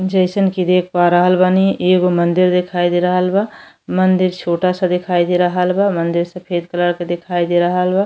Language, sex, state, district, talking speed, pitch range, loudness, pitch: Bhojpuri, female, Uttar Pradesh, Deoria, 195 wpm, 175-185 Hz, -15 LUFS, 180 Hz